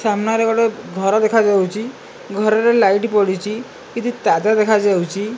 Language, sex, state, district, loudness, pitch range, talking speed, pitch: Odia, male, Odisha, Malkangiri, -16 LUFS, 205-225 Hz, 125 wpm, 215 Hz